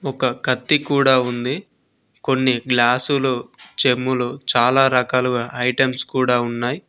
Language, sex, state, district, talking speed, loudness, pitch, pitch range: Telugu, male, Telangana, Mahabubabad, 105 wpm, -18 LUFS, 130 Hz, 125-135 Hz